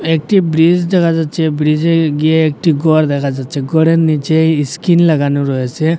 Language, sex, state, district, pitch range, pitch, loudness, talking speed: Bengali, male, Assam, Hailakandi, 150-165 Hz, 160 Hz, -13 LUFS, 150 wpm